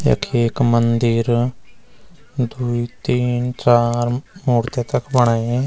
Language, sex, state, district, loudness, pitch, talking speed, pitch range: Garhwali, male, Uttarakhand, Uttarkashi, -18 LUFS, 120 Hz, 95 wpm, 120-125 Hz